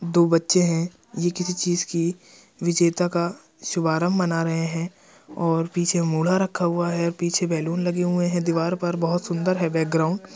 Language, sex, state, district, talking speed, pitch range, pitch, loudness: Hindi, male, Uttar Pradesh, Jyotiba Phule Nagar, 180 wpm, 165-180 Hz, 175 Hz, -23 LUFS